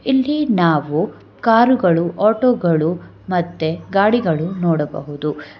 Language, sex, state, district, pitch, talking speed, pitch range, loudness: Kannada, female, Karnataka, Bangalore, 175 Hz, 75 wpm, 160-225 Hz, -17 LUFS